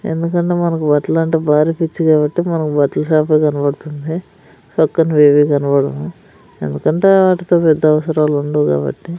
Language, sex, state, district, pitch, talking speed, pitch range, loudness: Telugu, female, Andhra Pradesh, Sri Satya Sai, 155 Hz, 115 wpm, 145-165 Hz, -14 LUFS